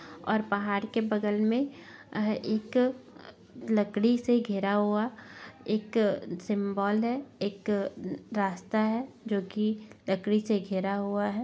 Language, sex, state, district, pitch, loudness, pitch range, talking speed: Hindi, female, Bihar, Sitamarhi, 210 Hz, -30 LUFS, 200-220 Hz, 125 wpm